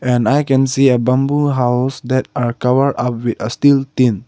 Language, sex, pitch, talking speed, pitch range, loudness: English, male, 130 Hz, 195 wpm, 125-135 Hz, -15 LUFS